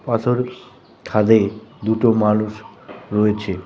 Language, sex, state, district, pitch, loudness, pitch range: Bengali, male, West Bengal, Cooch Behar, 110 Hz, -19 LUFS, 105-115 Hz